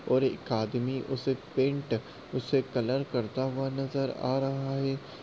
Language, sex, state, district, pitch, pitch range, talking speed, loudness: Hindi, male, Uttar Pradesh, Varanasi, 135 Hz, 130-135 Hz, 150 wpm, -31 LUFS